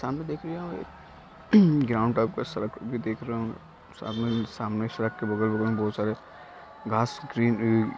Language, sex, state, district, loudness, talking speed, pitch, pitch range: Hindi, male, Bihar, Gopalganj, -27 LUFS, 175 wpm, 115 Hz, 110-120 Hz